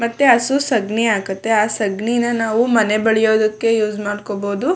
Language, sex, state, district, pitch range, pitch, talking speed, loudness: Kannada, female, Karnataka, Shimoga, 210-235 Hz, 220 Hz, 140 wpm, -17 LUFS